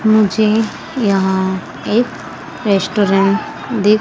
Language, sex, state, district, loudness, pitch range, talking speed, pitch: Hindi, female, Madhya Pradesh, Dhar, -16 LUFS, 195-220 Hz, 75 wpm, 210 Hz